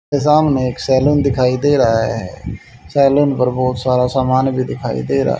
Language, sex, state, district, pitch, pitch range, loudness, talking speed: Hindi, male, Haryana, Charkhi Dadri, 130 Hz, 125-140 Hz, -15 LUFS, 190 wpm